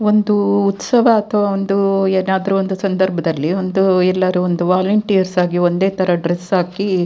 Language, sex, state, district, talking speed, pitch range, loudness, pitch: Kannada, female, Karnataka, Dakshina Kannada, 135 wpm, 180-200 Hz, -16 LUFS, 190 Hz